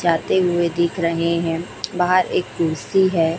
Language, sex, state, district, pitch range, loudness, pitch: Hindi, female, Chhattisgarh, Raipur, 165-180 Hz, -20 LUFS, 170 Hz